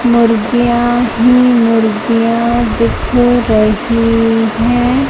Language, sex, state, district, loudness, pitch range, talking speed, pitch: Hindi, female, Madhya Pradesh, Katni, -11 LUFS, 230-240 Hz, 70 wpm, 235 Hz